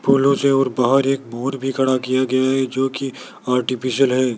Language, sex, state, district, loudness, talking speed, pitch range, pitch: Hindi, male, Rajasthan, Jaipur, -19 LUFS, 205 wpm, 130-135 Hz, 130 Hz